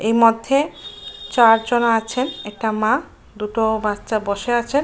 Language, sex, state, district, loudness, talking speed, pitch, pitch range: Bengali, female, West Bengal, Jalpaiguri, -19 LUFS, 135 wpm, 225 Hz, 215-240 Hz